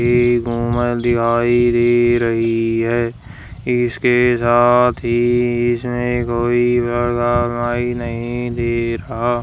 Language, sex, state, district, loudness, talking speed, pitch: Hindi, female, Haryana, Jhajjar, -17 LUFS, 75 wpm, 120 Hz